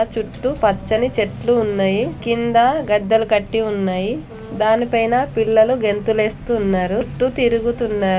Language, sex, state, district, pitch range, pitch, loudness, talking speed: Telugu, female, Telangana, Nalgonda, 210-235 Hz, 225 Hz, -18 LUFS, 115 wpm